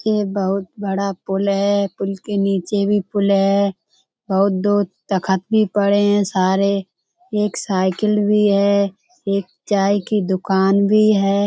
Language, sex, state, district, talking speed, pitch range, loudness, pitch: Hindi, female, Uttar Pradesh, Budaun, 145 wpm, 195-205 Hz, -18 LUFS, 200 Hz